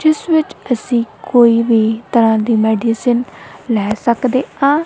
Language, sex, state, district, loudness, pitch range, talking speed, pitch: Punjabi, female, Punjab, Kapurthala, -14 LUFS, 225-255 Hz, 125 wpm, 235 Hz